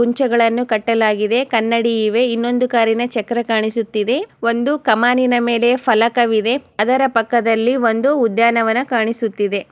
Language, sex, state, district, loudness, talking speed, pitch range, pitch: Kannada, female, Karnataka, Chamarajanagar, -16 LUFS, 110 wpm, 225-245 Hz, 235 Hz